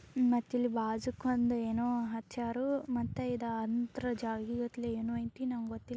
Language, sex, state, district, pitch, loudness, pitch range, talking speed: Kannada, female, Karnataka, Bijapur, 240 Hz, -35 LUFS, 230-245 Hz, 120 wpm